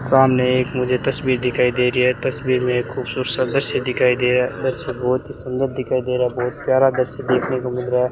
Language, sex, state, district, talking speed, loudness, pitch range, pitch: Hindi, male, Rajasthan, Bikaner, 250 wpm, -19 LUFS, 125-130 Hz, 125 Hz